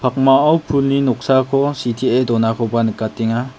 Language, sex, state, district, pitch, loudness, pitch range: Garo, male, Meghalaya, West Garo Hills, 125 Hz, -16 LUFS, 115-135 Hz